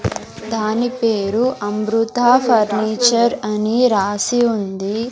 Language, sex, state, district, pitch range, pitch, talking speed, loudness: Telugu, male, Andhra Pradesh, Sri Satya Sai, 210-240 Hz, 225 Hz, 80 wpm, -17 LUFS